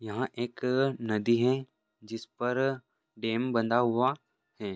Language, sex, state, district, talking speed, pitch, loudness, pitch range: Hindi, male, Chhattisgarh, Korba, 125 wpm, 120 Hz, -29 LUFS, 115-130 Hz